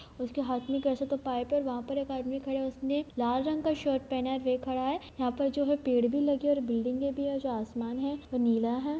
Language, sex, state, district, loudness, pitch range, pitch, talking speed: Hindi, female, Bihar, Purnia, -31 LUFS, 250-280 Hz, 270 Hz, 275 wpm